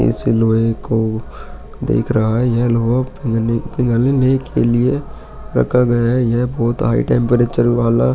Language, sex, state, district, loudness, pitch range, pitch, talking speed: Hindi, male, Uttar Pradesh, Hamirpur, -16 LUFS, 115-125 Hz, 120 Hz, 145 wpm